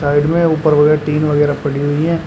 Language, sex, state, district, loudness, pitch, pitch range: Hindi, male, Uttar Pradesh, Shamli, -14 LUFS, 150 Hz, 145-160 Hz